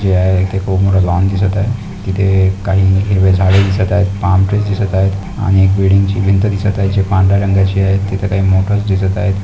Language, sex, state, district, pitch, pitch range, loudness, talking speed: Marathi, male, Maharashtra, Pune, 95 Hz, 95-100 Hz, -13 LUFS, 210 wpm